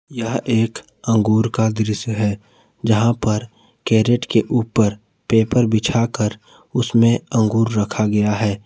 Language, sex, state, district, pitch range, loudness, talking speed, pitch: Hindi, male, Jharkhand, Palamu, 105-115 Hz, -18 LUFS, 125 wpm, 110 Hz